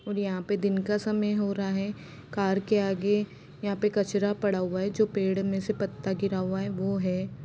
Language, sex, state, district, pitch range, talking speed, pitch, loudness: Hindi, female, Jharkhand, Jamtara, 190-205 Hz, 225 wpm, 200 Hz, -28 LUFS